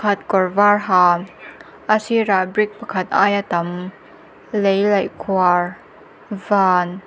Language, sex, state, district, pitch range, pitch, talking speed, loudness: Mizo, female, Mizoram, Aizawl, 180-205 Hz, 195 Hz, 120 wpm, -17 LUFS